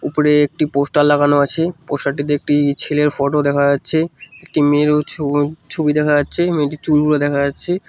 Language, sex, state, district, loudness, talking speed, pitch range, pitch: Bengali, male, West Bengal, Cooch Behar, -16 LUFS, 165 wpm, 145-155 Hz, 150 Hz